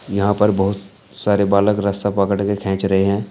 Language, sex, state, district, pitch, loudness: Hindi, male, Uttar Pradesh, Shamli, 100 Hz, -18 LUFS